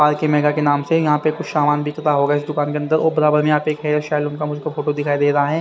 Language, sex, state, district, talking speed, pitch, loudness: Hindi, male, Haryana, Rohtak, 330 wpm, 150 Hz, -18 LUFS